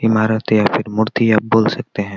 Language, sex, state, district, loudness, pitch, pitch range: Hindi, male, Bihar, Gaya, -16 LUFS, 110 Hz, 105-110 Hz